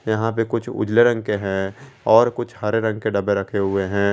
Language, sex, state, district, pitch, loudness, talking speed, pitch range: Hindi, male, Jharkhand, Garhwa, 110 Hz, -20 LUFS, 230 wpm, 100-115 Hz